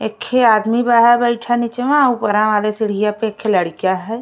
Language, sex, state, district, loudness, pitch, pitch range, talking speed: Bhojpuri, female, Uttar Pradesh, Ghazipur, -15 LUFS, 225 Hz, 210-240 Hz, 215 wpm